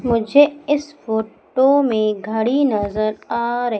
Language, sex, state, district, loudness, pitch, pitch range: Hindi, female, Madhya Pradesh, Umaria, -18 LUFS, 235 Hz, 220-280 Hz